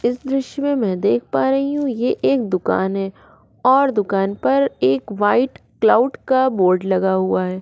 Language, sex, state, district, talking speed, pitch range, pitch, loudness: Hindi, female, Goa, North and South Goa, 175 wpm, 190-265 Hz, 210 Hz, -18 LUFS